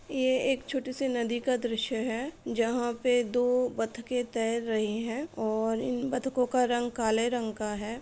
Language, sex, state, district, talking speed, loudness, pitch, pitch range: Hindi, female, Uttar Pradesh, Etah, 180 wpm, -30 LUFS, 240 Hz, 230-255 Hz